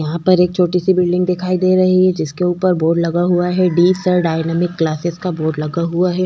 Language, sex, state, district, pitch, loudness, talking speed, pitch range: Hindi, female, Chhattisgarh, Korba, 180 Hz, -15 LUFS, 240 wpm, 170-185 Hz